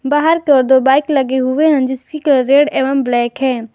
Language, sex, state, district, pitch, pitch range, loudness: Hindi, female, Jharkhand, Garhwa, 270 Hz, 260-290 Hz, -13 LUFS